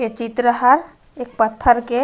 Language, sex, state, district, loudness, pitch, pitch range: Chhattisgarhi, female, Chhattisgarh, Raigarh, -17 LUFS, 240 Hz, 235-250 Hz